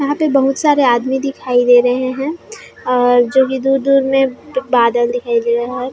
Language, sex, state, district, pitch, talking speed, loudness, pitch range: Chhattisgarhi, female, Chhattisgarh, Raigarh, 260 Hz, 190 wpm, -14 LUFS, 245-270 Hz